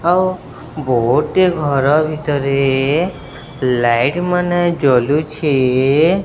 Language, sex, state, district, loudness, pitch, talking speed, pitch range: Odia, male, Odisha, Sambalpur, -15 LUFS, 145 Hz, 75 wpm, 135-175 Hz